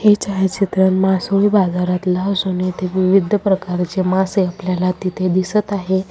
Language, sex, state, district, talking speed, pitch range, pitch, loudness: Marathi, female, Maharashtra, Chandrapur, 130 wpm, 185-195 Hz, 190 Hz, -17 LUFS